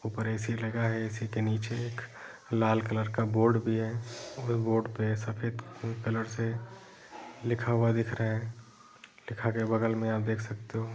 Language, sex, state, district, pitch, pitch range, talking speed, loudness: Hindi, male, Bihar, Jahanabad, 115 Hz, 110-115 Hz, 185 wpm, -31 LUFS